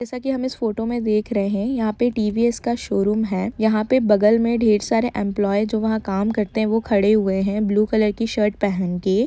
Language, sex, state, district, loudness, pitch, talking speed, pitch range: Hindi, female, Jharkhand, Jamtara, -20 LUFS, 215 Hz, 245 wpm, 205-230 Hz